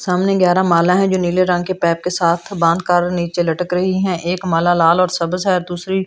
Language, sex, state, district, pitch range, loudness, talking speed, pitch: Hindi, female, Delhi, New Delhi, 175-185 Hz, -16 LUFS, 245 wpm, 180 Hz